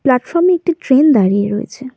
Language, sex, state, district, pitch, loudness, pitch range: Bengali, female, West Bengal, Cooch Behar, 260 Hz, -13 LUFS, 220-335 Hz